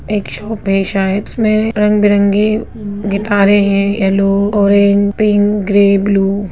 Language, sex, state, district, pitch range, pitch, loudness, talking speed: Hindi, female, Bihar, Jamui, 200-210 Hz, 200 Hz, -13 LUFS, 130 wpm